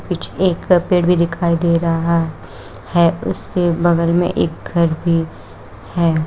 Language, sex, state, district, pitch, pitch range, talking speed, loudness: Hindi, female, Uttar Pradesh, Shamli, 170 Hz, 160-175 Hz, 135 wpm, -17 LUFS